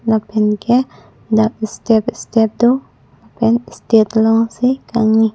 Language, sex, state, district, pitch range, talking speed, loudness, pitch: Karbi, female, Assam, Karbi Anglong, 220-235 Hz, 125 wpm, -15 LUFS, 225 Hz